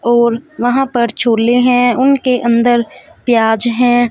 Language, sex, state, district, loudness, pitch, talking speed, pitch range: Hindi, female, Punjab, Fazilka, -12 LUFS, 240 Hz, 130 wpm, 235-245 Hz